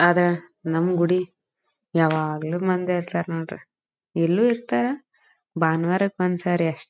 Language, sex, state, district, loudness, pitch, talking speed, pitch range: Kannada, female, Karnataka, Dharwad, -23 LUFS, 175 Hz, 115 wpm, 165-185 Hz